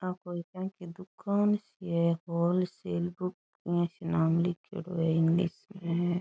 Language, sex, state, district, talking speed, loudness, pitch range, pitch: Rajasthani, female, Rajasthan, Churu, 145 wpm, -31 LUFS, 170-185 Hz, 175 Hz